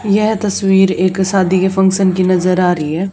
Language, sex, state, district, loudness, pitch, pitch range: Hindi, female, Haryana, Charkhi Dadri, -13 LUFS, 190 Hz, 185-195 Hz